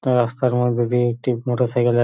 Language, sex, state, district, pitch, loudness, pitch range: Bengali, male, West Bengal, Purulia, 120 Hz, -20 LUFS, 120-125 Hz